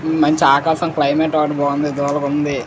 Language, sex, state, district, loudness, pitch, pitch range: Telugu, male, Andhra Pradesh, Visakhapatnam, -16 LUFS, 150 Hz, 140-155 Hz